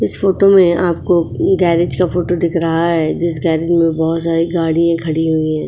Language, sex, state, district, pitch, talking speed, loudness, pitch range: Hindi, female, Uttar Pradesh, Etah, 170 Hz, 200 wpm, -14 LUFS, 165-175 Hz